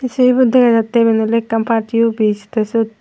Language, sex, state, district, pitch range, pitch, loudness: Chakma, female, Tripura, Unakoti, 225-240 Hz, 230 Hz, -14 LUFS